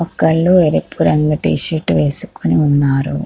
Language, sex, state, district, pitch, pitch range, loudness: Telugu, female, Andhra Pradesh, Krishna, 155 Hz, 145-170 Hz, -14 LUFS